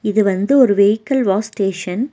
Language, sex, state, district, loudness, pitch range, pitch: Tamil, female, Tamil Nadu, Nilgiris, -16 LUFS, 195-245 Hz, 210 Hz